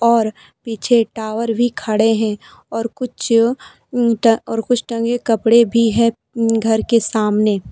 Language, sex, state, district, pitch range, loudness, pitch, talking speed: Hindi, female, Jharkhand, Deoghar, 220-235 Hz, -17 LUFS, 230 Hz, 140 wpm